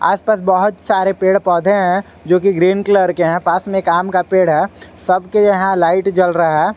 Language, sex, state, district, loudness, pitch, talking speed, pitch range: Hindi, male, Jharkhand, Garhwa, -14 LUFS, 185 Hz, 220 wpm, 175-195 Hz